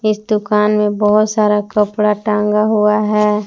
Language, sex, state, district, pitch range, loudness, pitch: Hindi, female, Jharkhand, Palamu, 210-215 Hz, -14 LUFS, 210 Hz